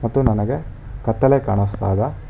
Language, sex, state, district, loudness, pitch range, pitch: Kannada, male, Karnataka, Bangalore, -20 LUFS, 100-130 Hz, 115 Hz